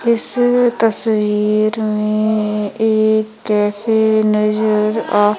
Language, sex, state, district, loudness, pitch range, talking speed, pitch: Hindi, female, Madhya Pradesh, Umaria, -15 LUFS, 210-220 Hz, 80 wpm, 215 Hz